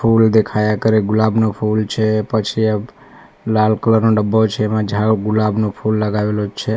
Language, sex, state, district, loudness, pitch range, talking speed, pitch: Gujarati, male, Gujarat, Valsad, -16 LUFS, 105-110 Hz, 170 wpm, 110 Hz